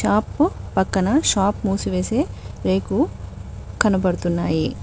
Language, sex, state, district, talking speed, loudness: Telugu, female, Telangana, Mahabubabad, 75 wpm, -21 LUFS